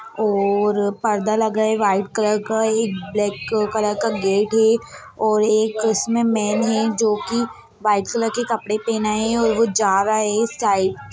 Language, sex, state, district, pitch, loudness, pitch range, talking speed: Hindi, female, Bihar, Sitamarhi, 215 Hz, -19 LUFS, 205-225 Hz, 190 wpm